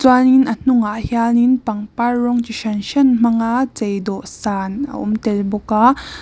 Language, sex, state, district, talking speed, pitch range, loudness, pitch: Mizo, female, Mizoram, Aizawl, 155 wpm, 215-250 Hz, -17 LUFS, 230 Hz